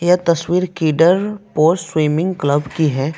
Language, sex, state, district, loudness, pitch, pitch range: Hindi, male, West Bengal, Alipurduar, -16 LUFS, 165 Hz, 155-180 Hz